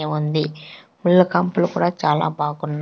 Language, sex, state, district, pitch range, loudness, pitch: Telugu, female, Andhra Pradesh, Sri Satya Sai, 150-155 Hz, -20 LUFS, 150 Hz